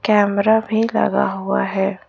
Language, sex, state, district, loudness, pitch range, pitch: Hindi, female, Jharkhand, Ranchi, -18 LUFS, 195-220 Hz, 205 Hz